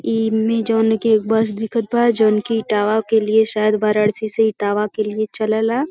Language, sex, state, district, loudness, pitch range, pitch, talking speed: Bhojpuri, female, Uttar Pradesh, Varanasi, -18 LUFS, 215-225 Hz, 220 Hz, 205 wpm